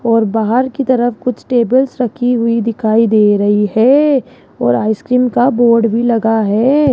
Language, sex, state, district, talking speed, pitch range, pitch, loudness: Hindi, female, Rajasthan, Jaipur, 165 wpm, 220-250 Hz, 235 Hz, -13 LUFS